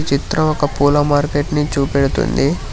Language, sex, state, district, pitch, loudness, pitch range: Telugu, male, Telangana, Hyderabad, 145 Hz, -16 LUFS, 140-150 Hz